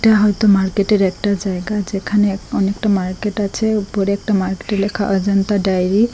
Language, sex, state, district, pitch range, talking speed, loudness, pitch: Bengali, female, Assam, Hailakandi, 195-210 Hz, 165 wpm, -17 LUFS, 200 Hz